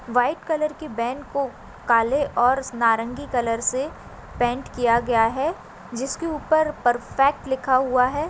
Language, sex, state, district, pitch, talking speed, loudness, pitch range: Hindi, female, Maharashtra, Aurangabad, 255 Hz, 145 wpm, -22 LUFS, 240-285 Hz